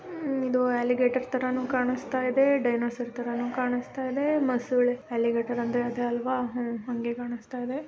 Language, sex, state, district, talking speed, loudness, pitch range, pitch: Kannada, female, Karnataka, Gulbarga, 145 wpm, -28 LUFS, 240-255 Hz, 250 Hz